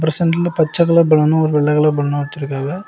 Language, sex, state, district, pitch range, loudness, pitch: Tamil, male, Tamil Nadu, Kanyakumari, 145-170 Hz, -15 LUFS, 155 Hz